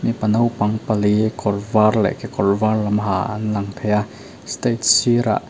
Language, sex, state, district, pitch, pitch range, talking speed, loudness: Mizo, male, Mizoram, Aizawl, 105 Hz, 105-110 Hz, 185 wpm, -19 LUFS